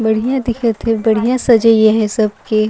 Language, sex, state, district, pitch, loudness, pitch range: Sadri, female, Chhattisgarh, Jashpur, 225 Hz, -14 LUFS, 215-235 Hz